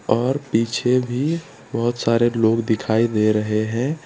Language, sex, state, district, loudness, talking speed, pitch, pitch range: Hindi, male, Gujarat, Valsad, -20 LUFS, 145 wpm, 115 Hz, 110-125 Hz